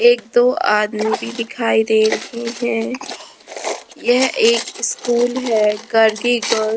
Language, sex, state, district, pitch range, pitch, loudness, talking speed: Hindi, female, Rajasthan, Jaipur, 220-245 Hz, 235 Hz, -17 LUFS, 135 wpm